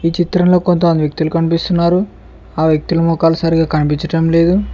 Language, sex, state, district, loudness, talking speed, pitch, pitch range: Telugu, male, Telangana, Mahabubabad, -14 LUFS, 140 wpm, 165 Hz, 165-175 Hz